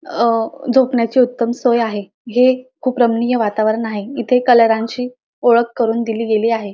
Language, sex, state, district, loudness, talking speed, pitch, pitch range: Marathi, female, Maharashtra, Dhule, -16 LUFS, 160 wpm, 235 Hz, 225-250 Hz